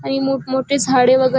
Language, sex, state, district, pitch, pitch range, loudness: Marathi, female, Maharashtra, Chandrapur, 265 Hz, 260-270 Hz, -16 LUFS